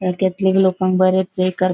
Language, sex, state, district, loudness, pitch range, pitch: Konkani, female, Goa, North and South Goa, -17 LUFS, 185-190 Hz, 185 Hz